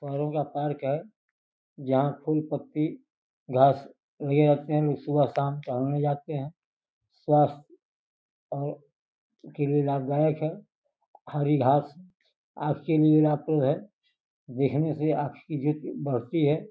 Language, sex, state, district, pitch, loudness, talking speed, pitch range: Hindi, male, Uttar Pradesh, Gorakhpur, 145 Hz, -27 LUFS, 130 wpm, 140-155 Hz